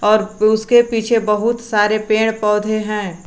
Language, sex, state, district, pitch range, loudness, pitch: Hindi, female, Jharkhand, Garhwa, 210-225 Hz, -16 LUFS, 215 Hz